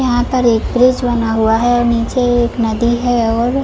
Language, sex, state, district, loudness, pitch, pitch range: Hindi, female, Jharkhand, Jamtara, -14 LUFS, 240 Hz, 230-245 Hz